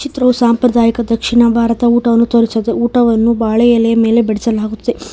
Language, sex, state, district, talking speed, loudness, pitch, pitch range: Kannada, female, Karnataka, Bangalore, 130 wpm, -12 LUFS, 235 Hz, 230-240 Hz